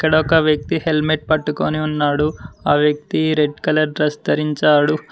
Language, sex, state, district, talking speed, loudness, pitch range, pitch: Telugu, male, Telangana, Mahabubabad, 130 wpm, -17 LUFS, 150-155 Hz, 150 Hz